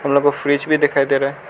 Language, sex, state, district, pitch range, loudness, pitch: Hindi, male, Arunachal Pradesh, Lower Dibang Valley, 140-145 Hz, -17 LUFS, 140 Hz